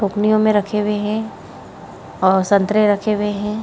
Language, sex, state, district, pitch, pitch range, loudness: Hindi, female, Bihar, Jahanabad, 210 Hz, 205-215 Hz, -17 LUFS